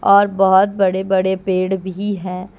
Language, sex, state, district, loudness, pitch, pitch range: Hindi, female, Jharkhand, Deoghar, -16 LUFS, 190 Hz, 185-195 Hz